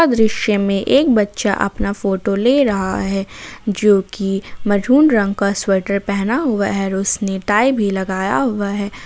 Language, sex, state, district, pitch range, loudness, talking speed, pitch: Hindi, female, Jharkhand, Ranchi, 195-225 Hz, -17 LUFS, 170 wpm, 200 Hz